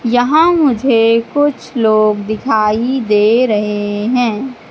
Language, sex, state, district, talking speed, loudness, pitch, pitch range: Hindi, female, Madhya Pradesh, Katni, 100 wpm, -13 LUFS, 230 Hz, 215-255 Hz